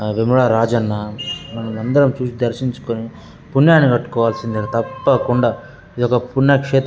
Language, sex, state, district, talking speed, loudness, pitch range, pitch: Telugu, male, Telangana, Karimnagar, 95 wpm, -17 LUFS, 115-135 Hz, 120 Hz